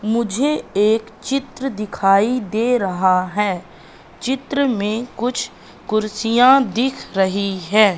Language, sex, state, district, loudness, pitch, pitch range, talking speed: Hindi, female, Madhya Pradesh, Katni, -19 LUFS, 220 Hz, 200-250 Hz, 105 wpm